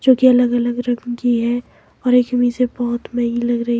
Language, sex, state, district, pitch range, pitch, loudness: Hindi, male, Himachal Pradesh, Shimla, 240-250 Hz, 245 Hz, -17 LUFS